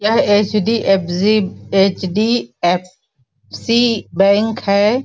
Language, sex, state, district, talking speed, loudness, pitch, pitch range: Hindi, female, Chhattisgarh, Raigarh, 70 wpm, -15 LUFS, 200 Hz, 185-215 Hz